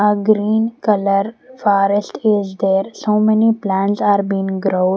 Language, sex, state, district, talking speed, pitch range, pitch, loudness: English, female, Maharashtra, Gondia, 145 wpm, 195-215 Hz, 205 Hz, -16 LUFS